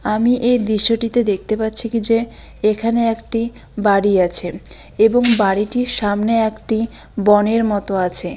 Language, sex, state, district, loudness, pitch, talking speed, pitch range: Bengali, female, West Bengal, Dakshin Dinajpur, -16 LUFS, 220 Hz, 130 wpm, 205-230 Hz